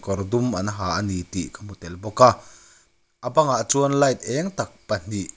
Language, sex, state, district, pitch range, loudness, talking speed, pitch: Mizo, male, Mizoram, Aizawl, 95-130 Hz, -22 LUFS, 210 wpm, 110 Hz